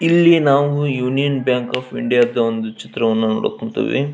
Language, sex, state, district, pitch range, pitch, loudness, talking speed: Kannada, male, Karnataka, Belgaum, 115-140 Hz, 125 Hz, -17 LUFS, 160 wpm